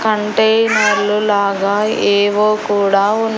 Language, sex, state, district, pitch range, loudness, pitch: Telugu, female, Andhra Pradesh, Annamaya, 200-215 Hz, -14 LUFS, 210 Hz